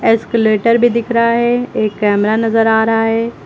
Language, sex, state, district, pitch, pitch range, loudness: Hindi, female, Uttar Pradesh, Lucknow, 225 Hz, 220-235 Hz, -13 LUFS